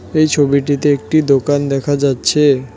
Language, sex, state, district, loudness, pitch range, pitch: Bengali, male, West Bengal, Cooch Behar, -14 LUFS, 140-150 Hz, 145 Hz